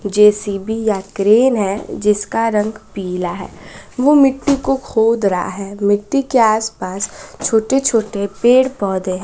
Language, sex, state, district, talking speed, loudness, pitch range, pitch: Hindi, female, Bihar, West Champaran, 145 wpm, -16 LUFS, 200-240 Hz, 215 Hz